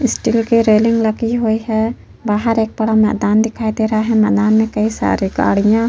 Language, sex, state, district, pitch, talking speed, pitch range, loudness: Hindi, female, Uttar Pradesh, Jyotiba Phule Nagar, 220 Hz, 205 wpm, 215-230 Hz, -15 LUFS